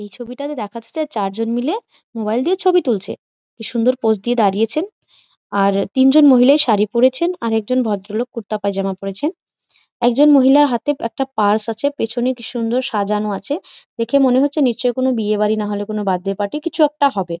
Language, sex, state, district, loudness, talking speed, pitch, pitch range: Bengali, female, West Bengal, Malda, -17 LUFS, 180 wpm, 235 Hz, 210-280 Hz